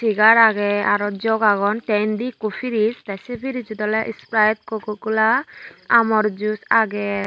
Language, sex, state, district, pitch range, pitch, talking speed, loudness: Chakma, female, Tripura, Unakoti, 210-225 Hz, 220 Hz, 155 wpm, -19 LUFS